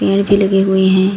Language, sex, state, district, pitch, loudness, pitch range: Hindi, female, Chhattisgarh, Balrampur, 195 Hz, -12 LUFS, 190-195 Hz